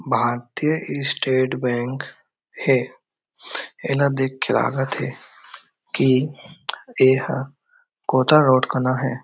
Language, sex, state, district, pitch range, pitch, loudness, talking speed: Chhattisgarhi, male, Chhattisgarh, Raigarh, 130-145 Hz, 130 Hz, -21 LUFS, 95 wpm